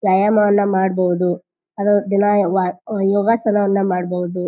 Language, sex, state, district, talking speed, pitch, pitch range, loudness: Kannada, female, Karnataka, Bijapur, 105 wpm, 195 Hz, 180-205 Hz, -17 LUFS